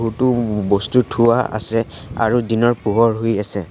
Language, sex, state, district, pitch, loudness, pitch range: Assamese, male, Assam, Sonitpur, 115 Hz, -17 LUFS, 105-120 Hz